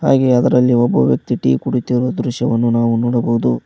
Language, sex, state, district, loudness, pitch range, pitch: Kannada, male, Karnataka, Koppal, -15 LUFS, 115-125 Hz, 120 Hz